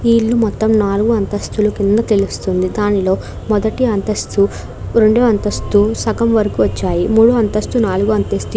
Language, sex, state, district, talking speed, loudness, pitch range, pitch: Telugu, female, Andhra Pradesh, Krishna, 140 wpm, -15 LUFS, 205-225 Hz, 210 Hz